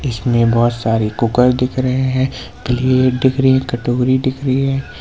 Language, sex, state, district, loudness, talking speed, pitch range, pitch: Hindi, male, Uttar Pradesh, Lucknow, -15 LUFS, 180 wpm, 120-130 Hz, 130 Hz